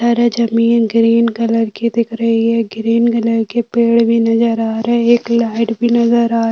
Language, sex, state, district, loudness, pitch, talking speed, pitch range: Hindi, female, Uttarakhand, Tehri Garhwal, -14 LUFS, 230 Hz, 200 wpm, 230-235 Hz